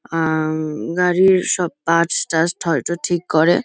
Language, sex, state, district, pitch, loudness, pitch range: Bengali, female, West Bengal, Kolkata, 170 Hz, -18 LUFS, 160-175 Hz